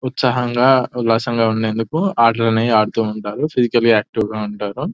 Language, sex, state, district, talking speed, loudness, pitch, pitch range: Telugu, male, Telangana, Nalgonda, 120 wpm, -17 LUFS, 115 Hz, 110-125 Hz